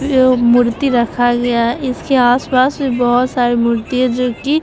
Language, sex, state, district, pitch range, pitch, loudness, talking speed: Hindi, female, Bihar, Vaishali, 240-260 Hz, 245 Hz, -14 LUFS, 205 wpm